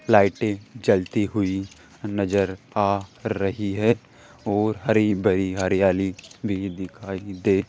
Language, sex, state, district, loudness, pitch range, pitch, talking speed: Hindi, male, Rajasthan, Jaipur, -24 LUFS, 95-110 Hz, 100 Hz, 115 wpm